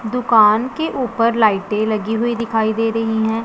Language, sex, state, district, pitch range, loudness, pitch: Hindi, male, Punjab, Pathankot, 220-235 Hz, -17 LUFS, 225 Hz